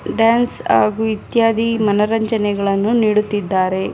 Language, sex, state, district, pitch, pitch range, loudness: Kannada, male, Karnataka, Mysore, 215 Hz, 205-225 Hz, -16 LUFS